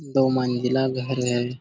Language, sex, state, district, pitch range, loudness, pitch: Hindi, male, Jharkhand, Sahebganj, 125-130 Hz, -23 LUFS, 130 Hz